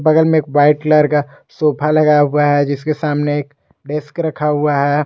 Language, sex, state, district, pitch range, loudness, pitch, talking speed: Hindi, male, Jharkhand, Garhwa, 145-150 Hz, -15 LUFS, 150 Hz, 190 wpm